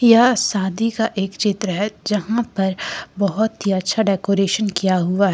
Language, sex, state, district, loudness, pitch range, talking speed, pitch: Hindi, female, Jharkhand, Ranchi, -19 LUFS, 190-220 Hz, 170 wpm, 200 Hz